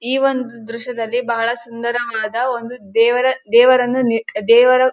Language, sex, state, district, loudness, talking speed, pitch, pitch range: Kannada, female, Karnataka, Dharwad, -16 LUFS, 120 wpm, 240 Hz, 230-255 Hz